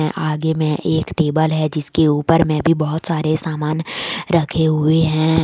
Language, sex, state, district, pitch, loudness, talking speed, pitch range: Hindi, female, Jharkhand, Deoghar, 155 Hz, -18 LUFS, 165 wpm, 155-160 Hz